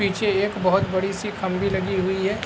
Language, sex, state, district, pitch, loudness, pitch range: Hindi, male, Bihar, Araria, 195 Hz, -23 LUFS, 190-200 Hz